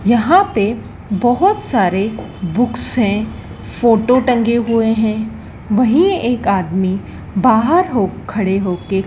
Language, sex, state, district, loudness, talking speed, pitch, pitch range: Hindi, female, Madhya Pradesh, Dhar, -15 LUFS, 110 wpm, 225 Hz, 200-245 Hz